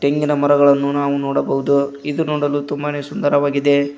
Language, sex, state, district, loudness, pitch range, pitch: Kannada, male, Karnataka, Koppal, -17 LUFS, 140-145 Hz, 145 Hz